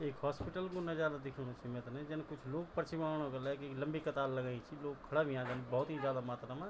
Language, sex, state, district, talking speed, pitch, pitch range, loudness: Garhwali, male, Uttarakhand, Tehri Garhwal, 260 wpm, 140 Hz, 130-155 Hz, -41 LUFS